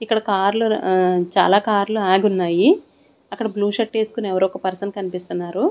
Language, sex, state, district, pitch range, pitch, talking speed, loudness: Telugu, female, Andhra Pradesh, Sri Satya Sai, 185-220 Hz, 200 Hz, 155 wpm, -19 LUFS